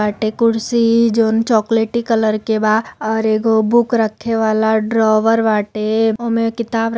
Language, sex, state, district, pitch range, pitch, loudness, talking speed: Bhojpuri, female, Uttar Pradesh, Deoria, 220-230 Hz, 225 Hz, -15 LUFS, 130 wpm